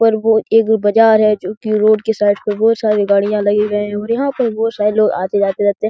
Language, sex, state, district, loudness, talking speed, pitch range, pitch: Hindi, male, Bihar, Jahanabad, -14 LUFS, 275 wpm, 205-225 Hz, 215 Hz